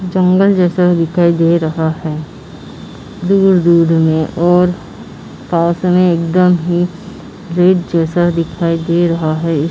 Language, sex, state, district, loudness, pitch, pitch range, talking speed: Hindi, female, Maharashtra, Mumbai Suburban, -13 LUFS, 175 Hz, 165-180 Hz, 115 wpm